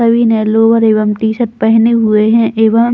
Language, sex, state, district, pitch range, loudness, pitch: Hindi, female, Chhattisgarh, Balrampur, 220-230 Hz, -10 LUFS, 225 Hz